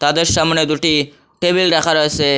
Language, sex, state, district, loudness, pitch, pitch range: Bengali, male, Assam, Hailakandi, -15 LUFS, 160 Hz, 150-165 Hz